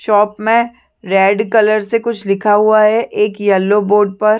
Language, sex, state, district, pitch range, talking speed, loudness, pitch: Hindi, female, Chhattisgarh, Sarguja, 205-220 Hz, 180 wpm, -13 LUFS, 210 Hz